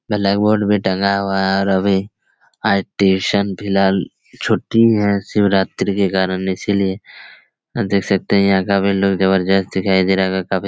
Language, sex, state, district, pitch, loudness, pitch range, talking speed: Hindi, male, Chhattisgarh, Raigarh, 100 Hz, -17 LUFS, 95-100 Hz, 150 wpm